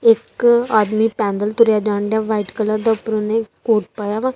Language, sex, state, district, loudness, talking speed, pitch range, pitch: Punjabi, female, Punjab, Kapurthala, -17 LUFS, 180 wpm, 210-225 Hz, 220 Hz